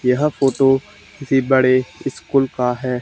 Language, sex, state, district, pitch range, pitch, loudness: Hindi, male, Haryana, Charkhi Dadri, 125-135 Hz, 130 Hz, -17 LUFS